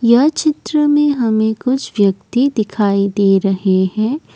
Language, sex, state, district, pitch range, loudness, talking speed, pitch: Hindi, female, Assam, Kamrup Metropolitan, 200-270 Hz, -15 LUFS, 135 wpm, 220 Hz